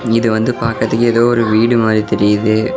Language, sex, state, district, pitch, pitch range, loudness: Tamil, male, Tamil Nadu, Namakkal, 115 Hz, 110-120 Hz, -13 LUFS